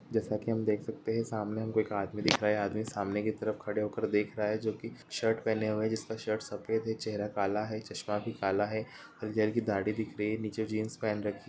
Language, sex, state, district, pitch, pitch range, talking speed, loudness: Hindi, male, Jharkhand, Sahebganj, 110 Hz, 105-110 Hz, 225 wpm, -33 LUFS